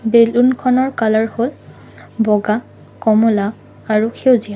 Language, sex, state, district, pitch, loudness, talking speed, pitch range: Assamese, female, Assam, Sonitpur, 225 Hz, -16 LUFS, 90 wpm, 215-245 Hz